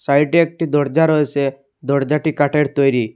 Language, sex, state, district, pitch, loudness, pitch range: Bengali, male, Assam, Hailakandi, 145 Hz, -17 LUFS, 140-155 Hz